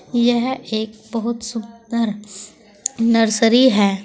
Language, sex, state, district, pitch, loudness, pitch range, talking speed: Hindi, female, Uttar Pradesh, Saharanpur, 230 Hz, -18 LUFS, 215-235 Hz, 90 wpm